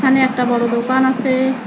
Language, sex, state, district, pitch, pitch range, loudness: Bengali, female, West Bengal, Alipurduar, 260 Hz, 245-260 Hz, -16 LUFS